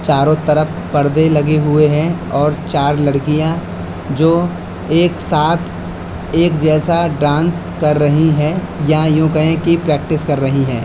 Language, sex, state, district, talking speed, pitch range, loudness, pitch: Hindi, male, Uttar Pradesh, Lalitpur, 145 wpm, 145-160 Hz, -14 LUFS, 150 Hz